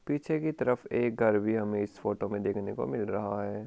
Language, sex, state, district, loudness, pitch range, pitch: Hindi, male, Rajasthan, Churu, -31 LUFS, 100-125 Hz, 110 Hz